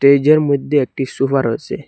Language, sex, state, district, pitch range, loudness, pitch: Bengali, male, Assam, Hailakandi, 135-145 Hz, -16 LUFS, 140 Hz